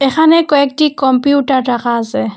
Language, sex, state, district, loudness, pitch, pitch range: Bengali, female, Assam, Hailakandi, -12 LUFS, 275 Hz, 245-290 Hz